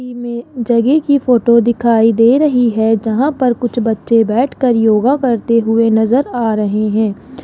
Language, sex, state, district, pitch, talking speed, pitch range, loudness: Hindi, male, Rajasthan, Jaipur, 235 Hz, 170 wpm, 225-250 Hz, -13 LUFS